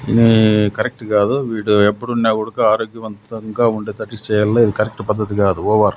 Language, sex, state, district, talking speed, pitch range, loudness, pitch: Telugu, male, Andhra Pradesh, Sri Satya Sai, 160 wpm, 105-115 Hz, -16 LUFS, 110 Hz